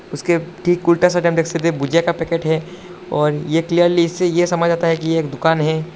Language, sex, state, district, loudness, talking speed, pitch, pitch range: Hindi, male, Assam, Hailakandi, -17 LUFS, 250 wpm, 170 Hz, 160-175 Hz